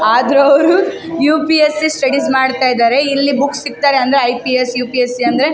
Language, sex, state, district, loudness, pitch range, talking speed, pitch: Kannada, female, Karnataka, Raichur, -13 LUFS, 250-295 Hz, 130 wpm, 275 Hz